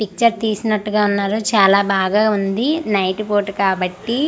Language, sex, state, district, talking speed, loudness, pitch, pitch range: Telugu, female, Andhra Pradesh, Manyam, 125 wpm, -17 LUFS, 210 Hz, 200-220 Hz